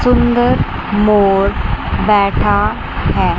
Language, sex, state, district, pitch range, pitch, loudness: Hindi, male, Chandigarh, Chandigarh, 200-240 Hz, 210 Hz, -14 LUFS